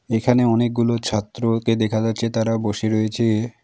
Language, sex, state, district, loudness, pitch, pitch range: Bengali, male, West Bengal, Alipurduar, -20 LUFS, 115 Hz, 110-115 Hz